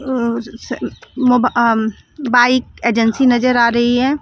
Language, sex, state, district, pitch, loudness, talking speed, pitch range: Hindi, female, Chandigarh, Chandigarh, 245 Hz, -15 LUFS, 115 wpm, 235-255 Hz